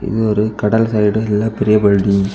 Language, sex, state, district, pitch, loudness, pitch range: Tamil, male, Tamil Nadu, Kanyakumari, 105 Hz, -15 LUFS, 105-110 Hz